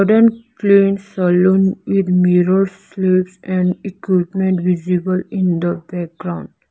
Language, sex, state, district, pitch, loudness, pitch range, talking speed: English, female, Arunachal Pradesh, Lower Dibang Valley, 185 Hz, -16 LUFS, 180-195 Hz, 105 wpm